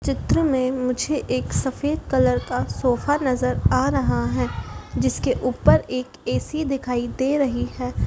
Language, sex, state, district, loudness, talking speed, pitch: Hindi, female, Madhya Pradesh, Dhar, -22 LUFS, 150 wpm, 250 Hz